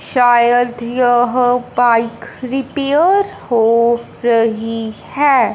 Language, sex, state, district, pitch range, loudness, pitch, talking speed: Hindi, male, Punjab, Fazilka, 235-255 Hz, -14 LUFS, 245 Hz, 75 wpm